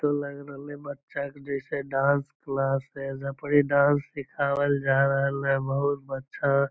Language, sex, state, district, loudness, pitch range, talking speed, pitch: Magahi, female, Bihar, Lakhisarai, -27 LUFS, 135-145 Hz, 180 wpm, 140 Hz